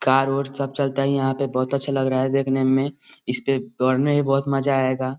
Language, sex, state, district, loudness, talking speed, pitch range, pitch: Hindi, male, Bihar, East Champaran, -22 LUFS, 245 wpm, 130-140 Hz, 135 Hz